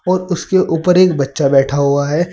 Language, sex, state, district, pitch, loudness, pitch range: Hindi, male, Uttar Pradesh, Saharanpur, 165 Hz, -14 LUFS, 140-180 Hz